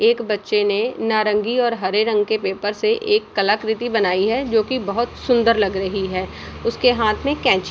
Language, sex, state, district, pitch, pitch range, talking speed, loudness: Hindi, female, Bihar, Samastipur, 220 Hz, 205-245 Hz, 200 wpm, -19 LUFS